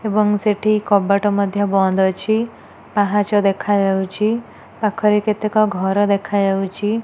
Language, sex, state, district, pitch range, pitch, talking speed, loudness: Odia, female, Odisha, Nuapada, 195-215 Hz, 205 Hz, 110 wpm, -18 LUFS